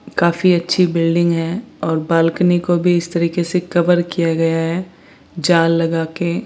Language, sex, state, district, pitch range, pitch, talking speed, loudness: Hindi, female, Chandigarh, Chandigarh, 165-175 Hz, 170 Hz, 165 wpm, -16 LUFS